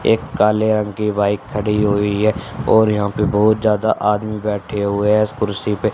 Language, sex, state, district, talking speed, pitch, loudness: Hindi, male, Haryana, Charkhi Dadri, 200 wpm, 105 Hz, -17 LUFS